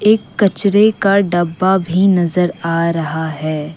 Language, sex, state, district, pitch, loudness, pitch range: Hindi, female, Assam, Kamrup Metropolitan, 180 Hz, -15 LUFS, 165-200 Hz